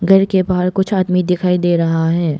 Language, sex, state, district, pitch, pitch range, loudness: Hindi, female, Arunachal Pradesh, Papum Pare, 180 Hz, 170-190 Hz, -15 LUFS